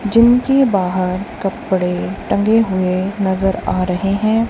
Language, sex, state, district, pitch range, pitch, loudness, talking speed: Hindi, female, Punjab, Kapurthala, 185-225 Hz, 195 Hz, -16 LUFS, 135 wpm